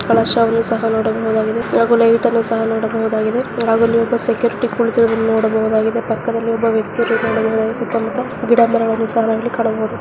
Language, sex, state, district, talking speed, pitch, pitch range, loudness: Kannada, female, Karnataka, Raichur, 110 wpm, 230 Hz, 225-235 Hz, -16 LUFS